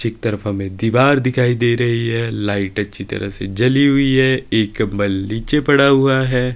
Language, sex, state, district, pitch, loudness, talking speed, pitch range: Hindi, male, Himachal Pradesh, Shimla, 115 Hz, -16 LUFS, 190 wpm, 105-130 Hz